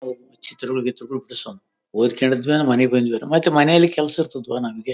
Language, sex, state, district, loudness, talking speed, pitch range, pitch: Kannada, male, Karnataka, Bellary, -19 LUFS, 135 wpm, 125-150 Hz, 130 Hz